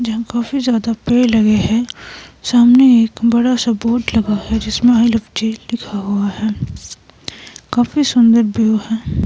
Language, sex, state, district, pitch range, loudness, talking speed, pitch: Hindi, female, Himachal Pradesh, Shimla, 220-240 Hz, -14 LUFS, 155 wpm, 230 Hz